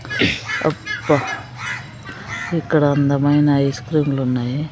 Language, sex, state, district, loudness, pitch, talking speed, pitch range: Telugu, female, Andhra Pradesh, Sri Satya Sai, -19 LUFS, 145 Hz, 90 wpm, 140-150 Hz